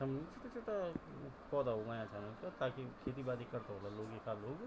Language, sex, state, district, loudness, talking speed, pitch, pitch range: Garhwali, male, Uttarakhand, Tehri Garhwal, -44 LUFS, 155 wpm, 125 Hz, 110-140 Hz